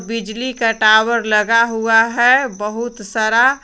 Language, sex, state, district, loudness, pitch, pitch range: Hindi, female, Jharkhand, Garhwa, -15 LUFS, 225 Hz, 220-235 Hz